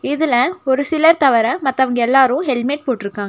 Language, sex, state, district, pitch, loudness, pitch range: Tamil, female, Tamil Nadu, Nilgiris, 265 Hz, -15 LUFS, 245-305 Hz